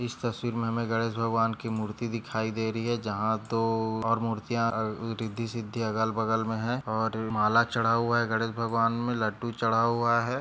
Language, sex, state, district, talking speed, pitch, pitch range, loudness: Hindi, male, Maharashtra, Nagpur, 195 wpm, 115 Hz, 110-115 Hz, -28 LUFS